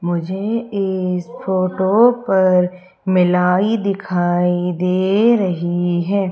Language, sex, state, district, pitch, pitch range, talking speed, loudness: Hindi, female, Madhya Pradesh, Umaria, 185 Hz, 180-195 Hz, 85 wpm, -17 LUFS